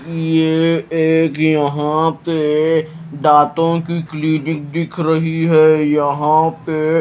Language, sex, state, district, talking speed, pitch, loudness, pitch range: Hindi, male, Himachal Pradesh, Shimla, 105 wpm, 160 Hz, -15 LUFS, 155-165 Hz